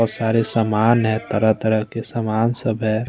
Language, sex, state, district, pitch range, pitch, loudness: Hindi, male, Chandigarh, Chandigarh, 110-115 Hz, 110 Hz, -19 LUFS